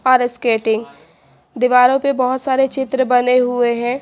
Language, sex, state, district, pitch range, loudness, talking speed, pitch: Hindi, female, Haryana, Charkhi Dadri, 245-265 Hz, -16 LUFS, 150 wpm, 250 Hz